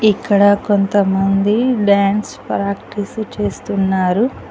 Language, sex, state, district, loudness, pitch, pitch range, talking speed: Telugu, female, Telangana, Mahabubabad, -16 LUFS, 205 Hz, 195-210 Hz, 65 wpm